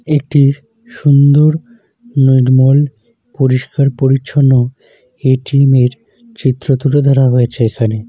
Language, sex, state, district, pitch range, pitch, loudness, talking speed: Bengali, male, West Bengal, Jalpaiguri, 130-145 Hz, 135 Hz, -12 LUFS, 80 wpm